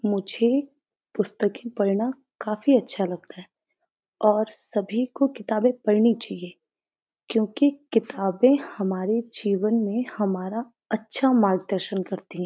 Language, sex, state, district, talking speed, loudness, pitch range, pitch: Hindi, female, Uttarakhand, Uttarkashi, 110 wpm, -24 LUFS, 200-250 Hz, 220 Hz